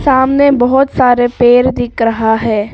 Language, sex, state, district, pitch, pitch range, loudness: Hindi, female, Arunachal Pradesh, Papum Pare, 245 Hz, 230-260 Hz, -11 LUFS